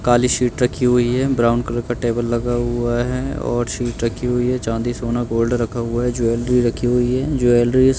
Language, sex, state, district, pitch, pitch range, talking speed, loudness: Hindi, male, Madhya Pradesh, Bhopal, 120 Hz, 120-125 Hz, 220 wpm, -19 LUFS